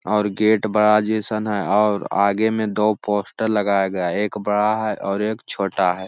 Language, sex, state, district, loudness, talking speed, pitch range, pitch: Hindi, male, Bihar, Araria, -20 LUFS, 195 wpm, 100-110 Hz, 105 Hz